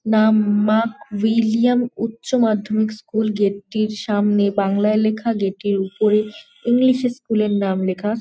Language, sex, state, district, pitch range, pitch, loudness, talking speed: Bengali, female, West Bengal, Jalpaiguri, 205-225 Hz, 215 Hz, -19 LUFS, 145 wpm